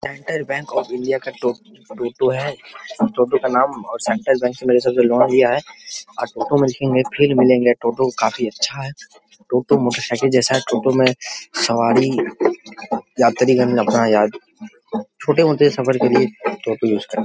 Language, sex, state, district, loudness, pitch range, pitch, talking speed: Hindi, male, Jharkhand, Jamtara, -18 LUFS, 120-135 Hz, 130 Hz, 165 wpm